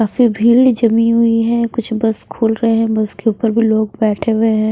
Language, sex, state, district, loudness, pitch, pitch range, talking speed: Hindi, female, Bihar, West Champaran, -14 LUFS, 225 Hz, 220-230 Hz, 230 wpm